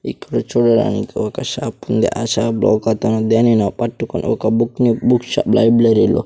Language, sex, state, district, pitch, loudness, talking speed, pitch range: Telugu, male, Andhra Pradesh, Sri Satya Sai, 115 Hz, -16 LUFS, 180 wpm, 110-120 Hz